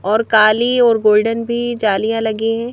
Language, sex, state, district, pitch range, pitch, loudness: Hindi, female, Madhya Pradesh, Bhopal, 215-235 Hz, 225 Hz, -15 LUFS